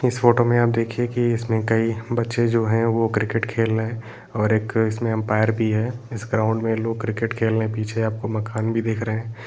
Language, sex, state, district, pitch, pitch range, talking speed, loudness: Hindi, male, Bihar, Gaya, 115 Hz, 110-115 Hz, 235 wpm, -22 LUFS